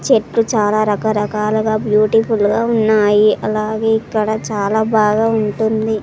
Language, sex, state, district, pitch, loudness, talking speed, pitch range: Telugu, female, Andhra Pradesh, Sri Satya Sai, 215 Hz, -15 LUFS, 110 wpm, 210-220 Hz